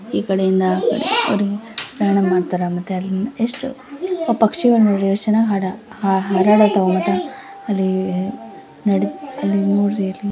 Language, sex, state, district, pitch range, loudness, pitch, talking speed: Kannada, female, Karnataka, Gulbarga, 190-225 Hz, -18 LUFS, 200 Hz, 140 wpm